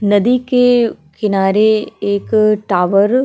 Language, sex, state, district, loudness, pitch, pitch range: Hindi, female, Maharashtra, Chandrapur, -14 LUFS, 215 Hz, 200-235 Hz